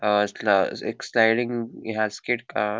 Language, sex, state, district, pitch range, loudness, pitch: Konkani, male, Goa, North and South Goa, 105-120 Hz, -24 LUFS, 110 Hz